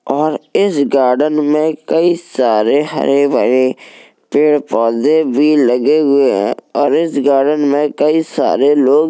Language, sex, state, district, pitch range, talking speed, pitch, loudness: Hindi, female, Uttar Pradesh, Jalaun, 135-155 Hz, 145 wpm, 145 Hz, -13 LUFS